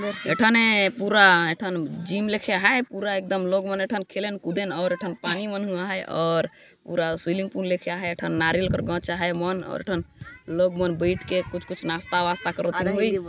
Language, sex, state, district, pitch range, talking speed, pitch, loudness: Sadri, female, Chhattisgarh, Jashpur, 175-200 Hz, 200 wpm, 185 Hz, -23 LUFS